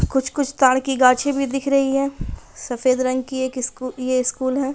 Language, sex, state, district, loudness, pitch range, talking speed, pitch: Hindi, female, Bihar, Bhagalpur, -20 LUFS, 255-275 Hz, 190 wpm, 260 Hz